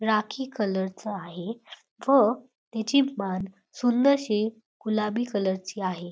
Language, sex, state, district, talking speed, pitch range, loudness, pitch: Marathi, female, Maharashtra, Dhule, 120 wpm, 195-245 Hz, -27 LUFS, 215 Hz